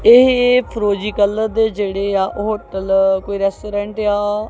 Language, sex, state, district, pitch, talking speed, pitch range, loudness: Punjabi, female, Punjab, Kapurthala, 205 Hz, 145 wpm, 200-220 Hz, -16 LUFS